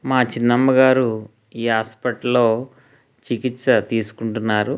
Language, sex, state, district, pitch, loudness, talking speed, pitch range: Telugu, male, Andhra Pradesh, Krishna, 120 Hz, -19 LUFS, 100 wpm, 110-130 Hz